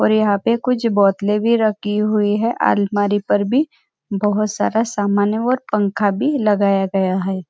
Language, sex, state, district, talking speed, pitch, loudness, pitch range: Hindi, female, Maharashtra, Nagpur, 175 wpm, 210 Hz, -18 LUFS, 200-225 Hz